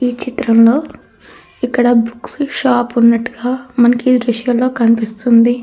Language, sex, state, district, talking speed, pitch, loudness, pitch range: Telugu, female, Andhra Pradesh, Krishna, 115 wpm, 245 Hz, -13 LUFS, 235-255 Hz